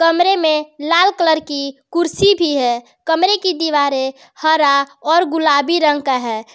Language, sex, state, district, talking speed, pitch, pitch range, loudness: Hindi, female, Jharkhand, Garhwa, 155 wpm, 310 Hz, 280-340 Hz, -15 LUFS